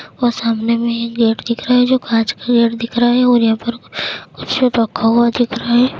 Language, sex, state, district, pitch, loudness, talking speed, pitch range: Hindi, female, Uttar Pradesh, Jyotiba Phule Nagar, 235 Hz, -15 LUFS, 240 wpm, 230-245 Hz